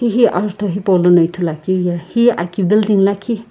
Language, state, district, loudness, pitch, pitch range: Sumi, Nagaland, Kohima, -15 LUFS, 195 Hz, 180-215 Hz